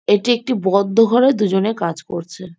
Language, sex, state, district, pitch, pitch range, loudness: Bengali, female, West Bengal, Jhargram, 205 Hz, 185-230 Hz, -17 LUFS